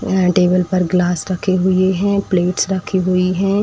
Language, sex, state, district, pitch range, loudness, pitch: Hindi, female, Uttar Pradesh, Etah, 180-190 Hz, -16 LUFS, 185 Hz